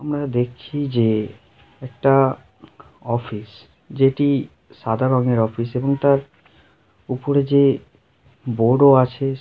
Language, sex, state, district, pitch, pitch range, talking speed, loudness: Bengali, male, West Bengal, North 24 Parganas, 130 Hz, 120-140 Hz, 100 wpm, -19 LUFS